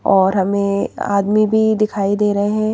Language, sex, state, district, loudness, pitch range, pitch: Hindi, female, Madhya Pradesh, Bhopal, -16 LUFS, 200-215 Hz, 205 Hz